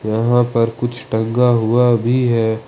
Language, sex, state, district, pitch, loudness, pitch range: Hindi, male, Jharkhand, Ranchi, 120 Hz, -16 LUFS, 110-120 Hz